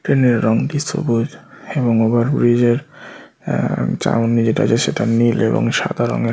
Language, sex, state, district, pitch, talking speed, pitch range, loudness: Bengali, male, West Bengal, Malda, 120 Hz, 160 wpm, 115-140 Hz, -17 LUFS